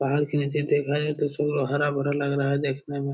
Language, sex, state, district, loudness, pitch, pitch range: Hindi, male, Bihar, Jamui, -25 LUFS, 145 Hz, 140-145 Hz